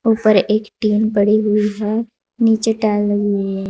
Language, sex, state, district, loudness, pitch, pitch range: Hindi, female, Uttar Pradesh, Saharanpur, -16 LUFS, 215 Hz, 205-220 Hz